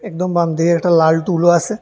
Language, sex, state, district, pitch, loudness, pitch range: Bengali, male, Tripura, West Tripura, 170 Hz, -15 LUFS, 165-180 Hz